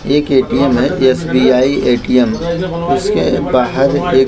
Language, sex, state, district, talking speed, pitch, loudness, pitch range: Hindi, male, Maharashtra, Mumbai Suburban, 125 wpm, 130 Hz, -13 LUFS, 125-145 Hz